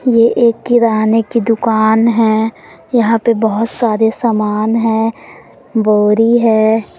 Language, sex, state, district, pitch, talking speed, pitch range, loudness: Hindi, female, Madhya Pradesh, Umaria, 225 Hz, 120 wpm, 220-230 Hz, -13 LUFS